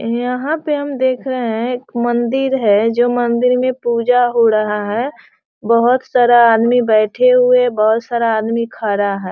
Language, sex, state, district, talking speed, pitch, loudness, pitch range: Hindi, female, Bihar, Sitamarhi, 180 wpm, 240 Hz, -15 LUFS, 225-250 Hz